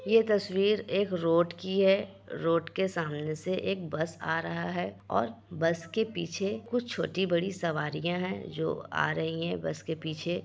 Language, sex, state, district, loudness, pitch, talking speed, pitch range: Hindi, female, Bihar, Kishanganj, -30 LUFS, 170 Hz, 170 wpm, 160-195 Hz